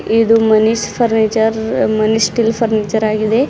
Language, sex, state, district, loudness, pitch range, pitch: Kannada, female, Karnataka, Bidar, -14 LUFS, 220-225 Hz, 220 Hz